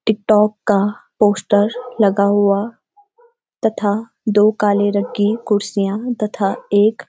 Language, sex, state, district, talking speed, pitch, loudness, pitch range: Hindi, female, Uttarakhand, Uttarkashi, 125 wpm, 210 Hz, -17 LUFS, 205-225 Hz